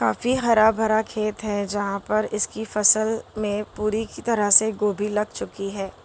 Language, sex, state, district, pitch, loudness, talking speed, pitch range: Hindi, female, Gujarat, Valsad, 215 Hz, -22 LUFS, 170 wpm, 205-220 Hz